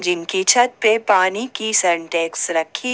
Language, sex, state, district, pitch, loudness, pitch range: Hindi, female, Jharkhand, Ranchi, 190 Hz, -17 LUFS, 170-230 Hz